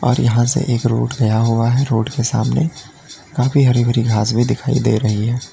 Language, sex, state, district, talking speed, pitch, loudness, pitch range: Hindi, male, Uttar Pradesh, Lalitpur, 205 wpm, 120 Hz, -16 LUFS, 115-130 Hz